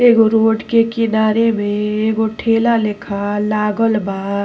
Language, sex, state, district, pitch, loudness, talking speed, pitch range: Bhojpuri, female, Uttar Pradesh, Ghazipur, 220 Hz, -16 LUFS, 135 wpm, 210-225 Hz